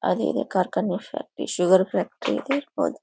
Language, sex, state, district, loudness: Kannada, female, Karnataka, Bijapur, -24 LUFS